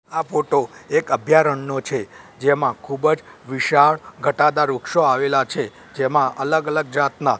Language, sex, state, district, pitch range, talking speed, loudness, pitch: Gujarati, male, Gujarat, Gandhinagar, 135-155 Hz, 130 wpm, -19 LUFS, 145 Hz